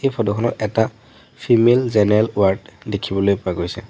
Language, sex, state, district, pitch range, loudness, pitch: Assamese, male, Assam, Sonitpur, 100-115 Hz, -18 LUFS, 110 Hz